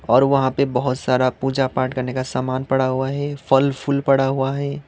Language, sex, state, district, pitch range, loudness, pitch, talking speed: Hindi, male, Sikkim, Gangtok, 130-140 Hz, -20 LUFS, 135 Hz, 220 wpm